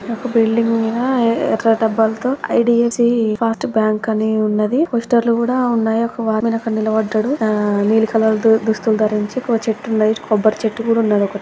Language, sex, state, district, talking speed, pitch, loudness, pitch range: Telugu, female, Andhra Pradesh, Guntur, 165 wpm, 225 Hz, -16 LUFS, 220-235 Hz